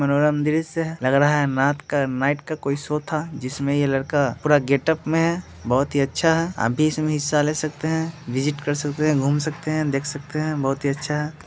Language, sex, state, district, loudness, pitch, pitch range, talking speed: Hindi, male, Bihar, Muzaffarpur, -22 LUFS, 150 Hz, 140-155 Hz, 235 wpm